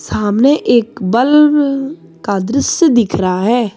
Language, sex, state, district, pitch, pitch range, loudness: Hindi, female, Jharkhand, Deoghar, 240 Hz, 205-280 Hz, -13 LUFS